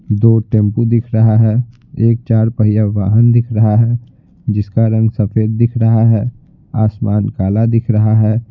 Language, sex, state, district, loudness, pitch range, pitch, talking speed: Hindi, male, Bihar, Patna, -13 LUFS, 110-115 Hz, 110 Hz, 170 wpm